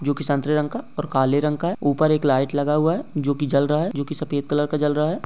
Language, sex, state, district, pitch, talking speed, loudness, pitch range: Hindi, male, Jharkhand, Jamtara, 150 Hz, 330 wpm, -22 LUFS, 145-155 Hz